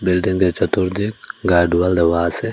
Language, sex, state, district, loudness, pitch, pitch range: Bengali, male, Assam, Hailakandi, -17 LUFS, 90 Hz, 85-95 Hz